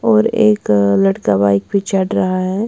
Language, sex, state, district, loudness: Hindi, female, Bihar, West Champaran, -14 LUFS